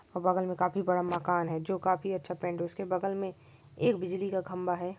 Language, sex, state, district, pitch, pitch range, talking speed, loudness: Maithili, male, Bihar, Supaul, 180 Hz, 175-190 Hz, 230 wpm, -32 LUFS